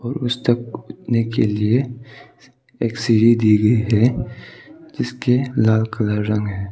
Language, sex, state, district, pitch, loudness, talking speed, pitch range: Hindi, male, Arunachal Pradesh, Papum Pare, 115 Hz, -18 LUFS, 150 wpm, 110-125 Hz